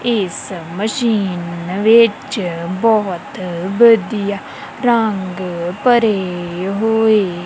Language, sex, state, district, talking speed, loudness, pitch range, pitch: Punjabi, female, Punjab, Kapurthala, 65 wpm, -16 LUFS, 180-225 Hz, 200 Hz